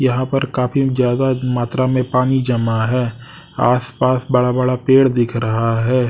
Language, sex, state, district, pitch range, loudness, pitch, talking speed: Hindi, male, Odisha, Sambalpur, 120-130 Hz, -17 LUFS, 125 Hz, 165 wpm